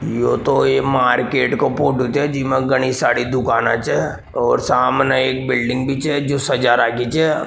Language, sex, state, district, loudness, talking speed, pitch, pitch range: Marwari, male, Rajasthan, Nagaur, -17 LUFS, 175 wpm, 130 Hz, 120-135 Hz